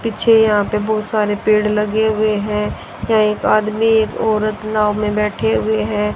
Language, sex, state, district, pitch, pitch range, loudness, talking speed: Hindi, female, Haryana, Rohtak, 210 Hz, 210-215 Hz, -16 LUFS, 185 wpm